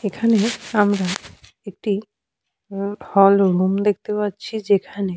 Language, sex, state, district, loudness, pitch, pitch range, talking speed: Bengali, female, Jharkhand, Sahebganj, -20 LUFS, 200 Hz, 195-210 Hz, 95 wpm